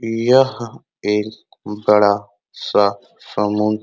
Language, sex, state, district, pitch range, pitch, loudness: Hindi, male, Uttar Pradesh, Ghazipur, 105-115 Hz, 105 Hz, -17 LUFS